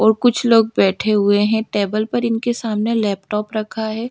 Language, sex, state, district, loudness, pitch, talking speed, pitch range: Hindi, female, Chhattisgarh, Raipur, -18 LUFS, 220 Hz, 190 wpm, 210-230 Hz